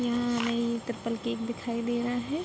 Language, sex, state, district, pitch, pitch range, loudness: Hindi, female, Uttar Pradesh, Budaun, 235 Hz, 235-240 Hz, -30 LUFS